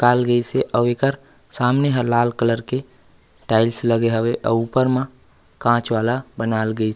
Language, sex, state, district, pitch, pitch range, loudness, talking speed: Chhattisgarhi, male, Chhattisgarh, Raigarh, 120 Hz, 115-130 Hz, -20 LUFS, 180 wpm